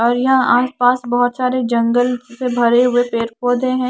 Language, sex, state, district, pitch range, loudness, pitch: Hindi, female, Haryana, Charkhi Dadri, 240-255 Hz, -16 LUFS, 245 Hz